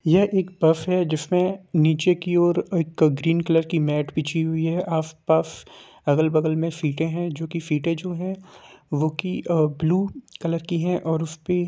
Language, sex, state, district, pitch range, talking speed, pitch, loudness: Hindi, male, Jharkhand, Jamtara, 160-180 Hz, 175 wpm, 165 Hz, -23 LUFS